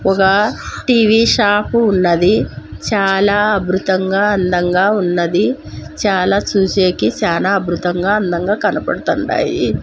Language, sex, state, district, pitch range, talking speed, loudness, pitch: Telugu, female, Andhra Pradesh, Sri Satya Sai, 180-210 Hz, 85 wpm, -14 LUFS, 195 Hz